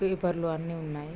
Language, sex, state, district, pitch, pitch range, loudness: Telugu, female, Andhra Pradesh, Krishna, 165 Hz, 160-180 Hz, -31 LUFS